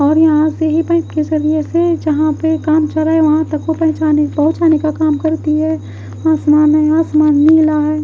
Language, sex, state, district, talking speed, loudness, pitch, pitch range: Hindi, female, Odisha, Khordha, 200 wpm, -13 LUFS, 310 Hz, 305-320 Hz